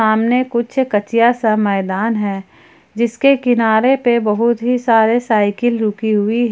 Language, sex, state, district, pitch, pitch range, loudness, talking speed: Hindi, female, Jharkhand, Ranchi, 230 Hz, 215-240 Hz, -15 LUFS, 140 wpm